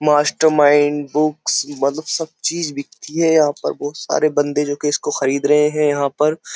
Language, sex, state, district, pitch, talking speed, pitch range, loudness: Hindi, male, Uttar Pradesh, Jyotiba Phule Nagar, 150 Hz, 185 wpm, 145-155 Hz, -17 LUFS